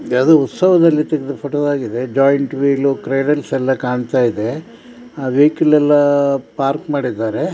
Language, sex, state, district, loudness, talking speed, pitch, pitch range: Kannada, male, Karnataka, Dakshina Kannada, -15 LUFS, 120 wpm, 140 Hz, 135-150 Hz